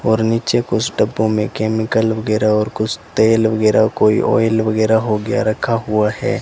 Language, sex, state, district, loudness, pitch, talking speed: Hindi, male, Rajasthan, Bikaner, -16 LUFS, 110 Hz, 175 wpm